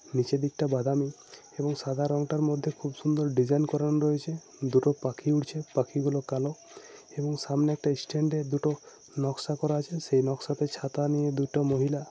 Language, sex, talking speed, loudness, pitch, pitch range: Bengali, male, 190 wpm, -29 LUFS, 145 Hz, 140-150 Hz